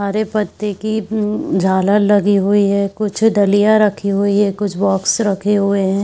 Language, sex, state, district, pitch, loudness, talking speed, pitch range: Hindi, female, Chhattisgarh, Bilaspur, 205 Hz, -15 LUFS, 180 wpm, 200-210 Hz